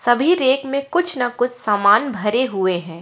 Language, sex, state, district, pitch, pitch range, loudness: Hindi, female, Bihar, Katihar, 245 Hz, 205-270 Hz, -18 LUFS